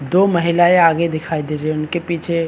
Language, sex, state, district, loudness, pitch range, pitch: Hindi, male, Chhattisgarh, Bastar, -16 LUFS, 155-170 Hz, 170 Hz